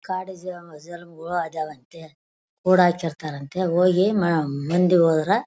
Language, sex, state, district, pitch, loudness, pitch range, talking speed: Kannada, female, Karnataka, Bellary, 175 Hz, -22 LUFS, 160-185 Hz, 75 wpm